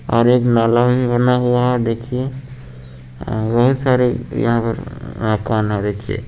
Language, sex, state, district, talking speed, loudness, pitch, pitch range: Hindi, male, Chandigarh, Chandigarh, 115 wpm, -17 LUFS, 120 Hz, 110-125 Hz